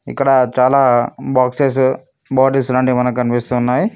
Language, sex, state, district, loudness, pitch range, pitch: Telugu, male, Telangana, Mahabubabad, -15 LUFS, 125-135 Hz, 130 Hz